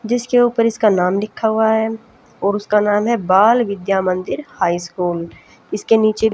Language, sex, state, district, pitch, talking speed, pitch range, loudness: Hindi, female, Haryana, Jhajjar, 215 Hz, 170 wpm, 195-225 Hz, -17 LUFS